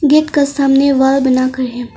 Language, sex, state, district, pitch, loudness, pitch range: Hindi, female, Arunachal Pradesh, Longding, 275 Hz, -13 LUFS, 260-285 Hz